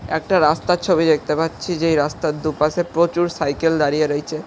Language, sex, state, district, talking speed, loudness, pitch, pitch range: Bengali, male, West Bengal, Jhargram, 160 wpm, -19 LUFS, 155 Hz, 150-170 Hz